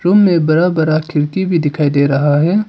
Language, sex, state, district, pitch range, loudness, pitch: Hindi, male, Arunachal Pradesh, Papum Pare, 150-180 Hz, -13 LUFS, 160 Hz